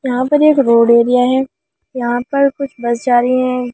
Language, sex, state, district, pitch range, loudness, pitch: Hindi, female, Delhi, New Delhi, 240-270 Hz, -13 LUFS, 250 Hz